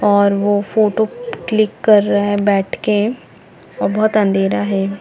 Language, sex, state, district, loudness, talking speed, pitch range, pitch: Hindi, female, Chhattisgarh, Bilaspur, -16 LUFS, 155 wpm, 200-215 Hz, 205 Hz